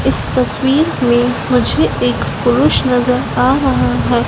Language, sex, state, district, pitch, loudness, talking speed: Hindi, female, Madhya Pradesh, Dhar, 240 Hz, -13 LUFS, 140 wpm